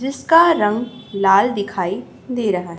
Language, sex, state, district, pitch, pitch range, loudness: Hindi, female, Chhattisgarh, Raipur, 210 Hz, 195-250 Hz, -17 LUFS